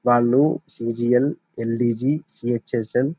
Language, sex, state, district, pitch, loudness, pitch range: Telugu, male, Telangana, Nalgonda, 120 Hz, -22 LUFS, 120-135 Hz